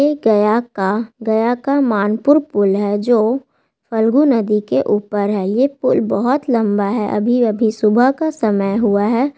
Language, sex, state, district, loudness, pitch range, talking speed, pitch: Hindi, female, Bihar, Gaya, -16 LUFS, 210-250 Hz, 165 wpm, 225 Hz